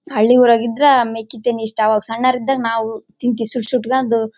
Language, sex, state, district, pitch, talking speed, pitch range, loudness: Kannada, female, Karnataka, Bellary, 235 Hz, 190 wpm, 225-250 Hz, -16 LUFS